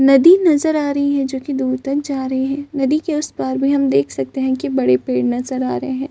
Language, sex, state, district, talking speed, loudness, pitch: Hindi, female, Maharashtra, Chandrapur, 265 wpm, -17 LUFS, 270 Hz